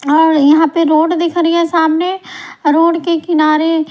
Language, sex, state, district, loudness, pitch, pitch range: Hindi, female, Punjab, Pathankot, -12 LUFS, 325 Hz, 310-335 Hz